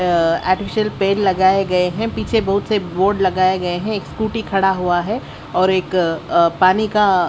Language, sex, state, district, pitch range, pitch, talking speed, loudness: Hindi, female, Odisha, Sambalpur, 180-205 Hz, 190 Hz, 190 wpm, -17 LUFS